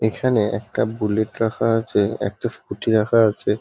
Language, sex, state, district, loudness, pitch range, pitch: Bengali, male, West Bengal, Kolkata, -21 LUFS, 105-115 Hz, 110 Hz